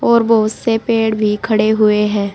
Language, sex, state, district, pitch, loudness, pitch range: Hindi, female, Uttar Pradesh, Saharanpur, 220 Hz, -14 LUFS, 210-225 Hz